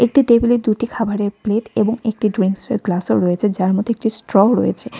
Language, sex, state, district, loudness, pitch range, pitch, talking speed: Bengali, female, West Bengal, Cooch Behar, -17 LUFS, 200-235 Hz, 220 Hz, 180 wpm